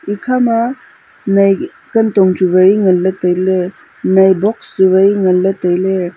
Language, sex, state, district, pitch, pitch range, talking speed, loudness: Wancho, female, Arunachal Pradesh, Longding, 190 Hz, 185-210 Hz, 165 wpm, -12 LUFS